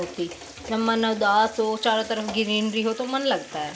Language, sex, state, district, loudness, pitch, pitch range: Hindi, female, Uttar Pradesh, Deoria, -24 LUFS, 220 Hz, 215-225 Hz